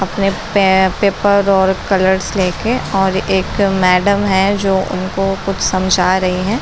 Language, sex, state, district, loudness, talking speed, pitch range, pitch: Hindi, female, Bihar, Saran, -14 LUFS, 155 wpm, 190-195 Hz, 190 Hz